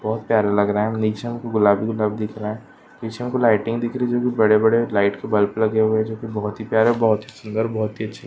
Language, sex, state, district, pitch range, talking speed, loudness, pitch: Hindi, male, Goa, North and South Goa, 105-115 Hz, 290 wpm, -20 LUFS, 110 Hz